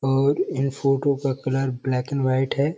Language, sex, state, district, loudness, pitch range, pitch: Hindi, male, Uttar Pradesh, Ghazipur, -23 LUFS, 130-140 Hz, 135 Hz